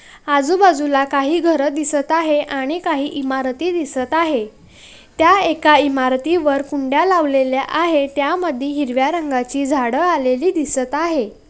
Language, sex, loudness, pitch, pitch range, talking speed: Marathi, female, -17 LUFS, 290 Hz, 270-325 Hz, 125 wpm